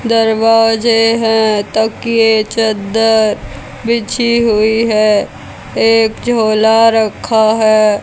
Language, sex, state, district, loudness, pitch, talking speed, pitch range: Hindi, female, Haryana, Jhajjar, -12 LUFS, 220 Hz, 80 wpm, 215-225 Hz